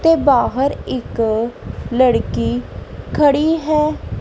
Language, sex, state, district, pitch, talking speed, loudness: Punjabi, female, Punjab, Kapurthala, 255 Hz, 85 wpm, -17 LUFS